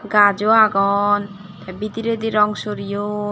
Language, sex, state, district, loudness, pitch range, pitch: Chakma, female, Tripura, Dhalai, -18 LUFS, 200-215 Hz, 205 Hz